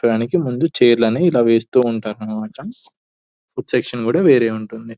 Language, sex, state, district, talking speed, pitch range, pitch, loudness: Telugu, male, Telangana, Nalgonda, 145 wpm, 115-125 Hz, 115 Hz, -17 LUFS